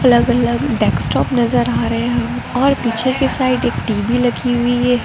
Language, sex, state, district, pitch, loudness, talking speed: Hindi, female, Arunachal Pradesh, Lower Dibang Valley, 240 Hz, -16 LUFS, 190 wpm